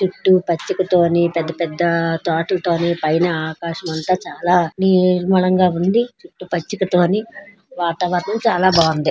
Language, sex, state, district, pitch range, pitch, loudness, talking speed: Telugu, female, Andhra Pradesh, Srikakulam, 170-185 Hz, 180 Hz, -18 LUFS, 90 wpm